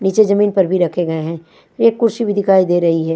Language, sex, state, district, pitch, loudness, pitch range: Hindi, female, Punjab, Fazilka, 190 Hz, -15 LUFS, 170-205 Hz